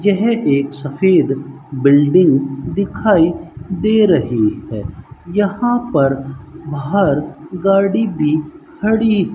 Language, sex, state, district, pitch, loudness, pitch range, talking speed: Hindi, male, Rajasthan, Bikaner, 155 Hz, -15 LUFS, 140-195 Hz, 95 wpm